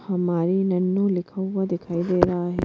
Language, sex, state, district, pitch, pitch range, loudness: Hindi, female, Madhya Pradesh, Bhopal, 180 Hz, 175-190 Hz, -23 LUFS